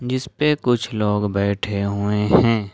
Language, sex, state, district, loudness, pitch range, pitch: Hindi, male, Jharkhand, Ranchi, -20 LUFS, 100-125 Hz, 105 Hz